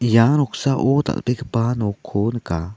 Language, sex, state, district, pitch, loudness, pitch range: Garo, male, Meghalaya, South Garo Hills, 120 Hz, -20 LUFS, 105-135 Hz